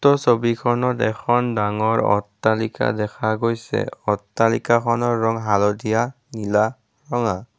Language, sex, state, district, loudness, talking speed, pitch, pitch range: Assamese, male, Assam, Kamrup Metropolitan, -21 LUFS, 95 wpm, 115 Hz, 105-120 Hz